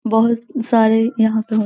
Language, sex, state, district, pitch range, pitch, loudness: Hindi, female, Bihar, Gaya, 220-230 Hz, 225 Hz, -16 LUFS